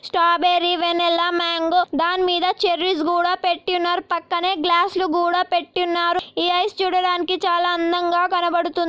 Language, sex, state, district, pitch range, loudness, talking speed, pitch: Telugu, male, Andhra Pradesh, Anantapur, 345-360 Hz, -19 LUFS, 140 wpm, 350 Hz